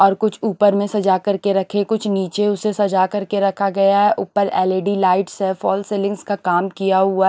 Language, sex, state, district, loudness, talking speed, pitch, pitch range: Hindi, female, Odisha, Nuapada, -18 LUFS, 205 wpm, 200 Hz, 190-205 Hz